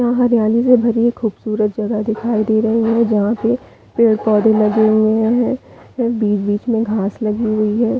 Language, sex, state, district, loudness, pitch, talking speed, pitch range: Hindi, female, Chhattisgarh, Bilaspur, -16 LUFS, 220 Hz, 180 wpm, 215-235 Hz